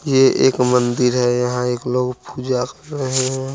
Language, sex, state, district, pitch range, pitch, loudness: Hindi, male, Bihar, Muzaffarpur, 125-130 Hz, 125 Hz, -18 LUFS